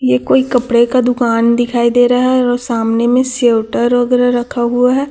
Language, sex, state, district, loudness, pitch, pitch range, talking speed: Hindi, female, Chhattisgarh, Raipur, -13 LUFS, 245 Hz, 235-250 Hz, 200 wpm